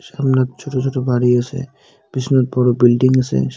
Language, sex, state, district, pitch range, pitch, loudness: Bengali, male, West Bengal, Cooch Behar, 125-135 Hz, 130 Hz, -16 LUFS